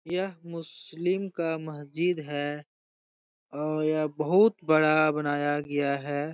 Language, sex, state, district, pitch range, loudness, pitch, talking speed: Hindi, male, Bihar, Jahanabad, 145-170 Hz, -27 LUFS, 155 Hz, 125 wpm